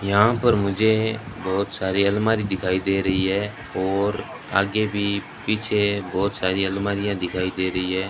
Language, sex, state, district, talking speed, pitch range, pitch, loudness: Hindi, male, Rajasthan, Bikaner, 155 wpm, 95-105 Hz, 100 Hz, -22 LUFS